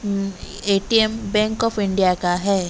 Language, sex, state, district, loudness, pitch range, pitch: Hindi, female, Odisha, Malkangiri, -20 LUFS, 195-215 Hz, 200 Hz